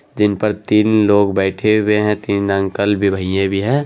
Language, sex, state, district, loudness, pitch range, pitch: Hindi, male, Bihar, Araria, -16 LUFS, 100-105 Hz, 105 Hz